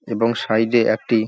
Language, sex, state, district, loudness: Bengali, male, West Bengal, Paschim Medinipur, -18 LUFS